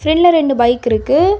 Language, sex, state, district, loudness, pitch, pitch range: Tamil, female, Tamil Nadu, Kanyakumari, -13 LUFS, 300 Hz, 240-340 Hz